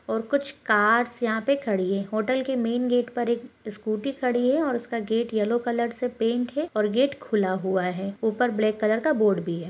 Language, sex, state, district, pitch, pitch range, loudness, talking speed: Hindi, female, Maharashtra, Pune, 235 Hz, 215-250 Hz, -25 LUFS, 225 wpm